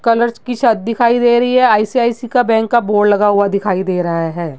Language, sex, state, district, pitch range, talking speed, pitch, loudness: Hindi, female, Uttar Pradesh, Gorakhpur, 200-240 Hz, 235 wpm, 225 Hz, -14 LUFS